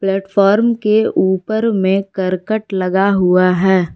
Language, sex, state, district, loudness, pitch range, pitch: Hindi, female, Jharkhand, Palamu, -15 LUFS, 185-215 Hz, 195 Hz